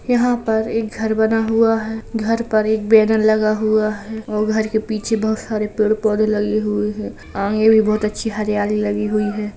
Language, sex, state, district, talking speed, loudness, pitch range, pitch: Hindi, female, Uttar Pradesh, Jalaun, 200 wpm, -18 LUFS, 215-220 Hz, 215 Hz